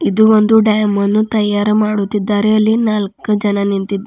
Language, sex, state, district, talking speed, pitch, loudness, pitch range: Kannada, female, Karnataka, Bidar, 160 wpm, 210 Hz, -14 LUFS, 205-215 Hz